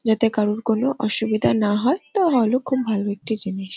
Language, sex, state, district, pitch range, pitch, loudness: Bengali, female, West Bengal, Kolkata, 210-255 Hz, 220 Hz, -21 LUFS